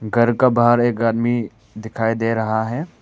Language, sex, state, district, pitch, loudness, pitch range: Hindi, male, Arunachal Pradesh, Papum Pare, 115 Hz, -18 LUFS, 110-120 Hz